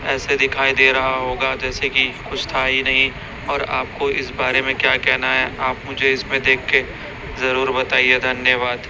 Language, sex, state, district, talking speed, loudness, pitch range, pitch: Hindi, male, Chhattisgarh, Raipur, 180 wpm, -17 LUFS, 130-135 Hz, 130 Hz